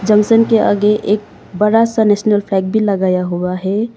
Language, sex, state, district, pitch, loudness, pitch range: Hindi, female, Sikkim, Gangtok, 210 Hz, -14 LUFS, 190-220 Hz